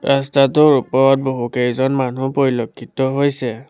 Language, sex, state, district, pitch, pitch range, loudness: Assamese, male, Assam, Sonitpur, 135 Hz, 125-135 Hz, -16 LUFS